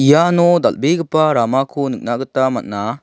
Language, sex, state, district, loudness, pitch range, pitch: Garo, male, Meghalaya, South Garo Hills, -16 LUFS, 130-155 Hz, 135 Hz